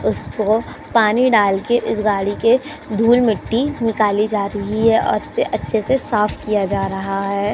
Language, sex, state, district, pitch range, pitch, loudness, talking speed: Hindi, female, Uttar Pradesh, Jyotiba Phule Nagar, 200-230 Hz, 215 Hz, -18 LUFS, 165 wpm